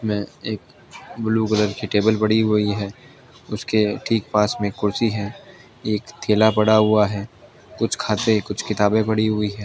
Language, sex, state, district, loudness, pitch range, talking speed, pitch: Hindi, male, Rajasthan, Bikaner, -20 LUFS, 105-115 Hz, 170 wpm, 110 Hz